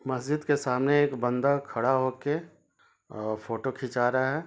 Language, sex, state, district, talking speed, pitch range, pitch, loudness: Hindi, male, Jharkhand, Sahebganj, 160 wpm, 125-145 Hz, 130 Hz, -28 LUFS